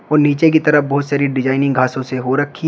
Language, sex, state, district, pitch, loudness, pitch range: Hindi, male, Uttar Pradesh, Shamli, 140 Hz, -15 LUFS, 130-150 Hz